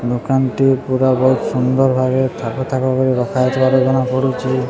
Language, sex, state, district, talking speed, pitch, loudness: Odia, male, Odisha, Sambalpur, 155 wpm, 130 Hz, -16 LUFS